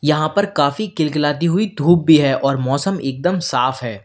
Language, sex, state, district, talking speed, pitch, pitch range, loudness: Hindi, male, Uttar Pradesh, Lalitpur, 190 wpm, 155 Hz, 140-180 Hz, -17 LUFS